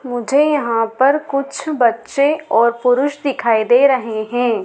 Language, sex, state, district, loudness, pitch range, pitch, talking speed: Hindi, female, Madhya Pradesh, Dhar, -16 LUFS, 235-280 Hz, 250 Hz, 140 wpm